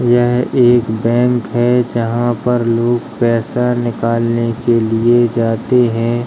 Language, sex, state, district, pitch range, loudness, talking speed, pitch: Hindi, male, Uttar Pradesh, Hamirpur, 115-120 Hz, -14 LUFS, 125 wpm, 120 Hz